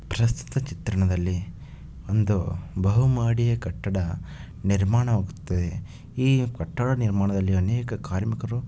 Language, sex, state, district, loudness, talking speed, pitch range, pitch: Kannada, male, Karnataka, Shimoga, -25 LUFS, 85 wpm, 95-120 Hz, 105 Hz